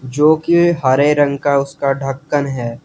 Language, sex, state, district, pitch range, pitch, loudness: Hindi, male, Jharkhand, Garhwa, 135-150 Hz, 140 Hz, -15 LUFS